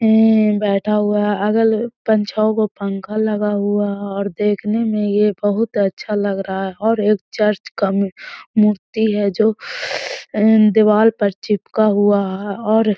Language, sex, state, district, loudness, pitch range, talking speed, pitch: Hindi, female, Bihar, Gaya, -17 LUFS, 205-215 Hz, 145 wpm, 210 Hz